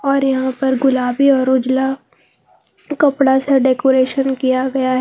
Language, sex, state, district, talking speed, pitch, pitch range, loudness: Hindi, female, Jharkhand, Palamu, 145 wpm, 265 Hz, 260-270 Hz, -15 LUFS